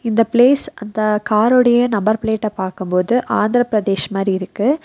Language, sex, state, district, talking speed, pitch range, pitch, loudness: Tamil, female, Tamil Nadu, Nilgiris, 135 wpm, 205-240 Hz, 215 Hz, -16 LUFS